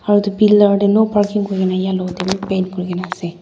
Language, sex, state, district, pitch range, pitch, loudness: Nagamese, female, Nagaland, Dimapur, 185-205 Hz, 195 Hz, -16 LUFS